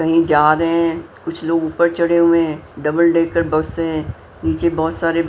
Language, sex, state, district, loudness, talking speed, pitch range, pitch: Hindi, female, Punjab, Pathankot, -17 LUFS, 195 wpm, 155-170 Hz, 165 Hz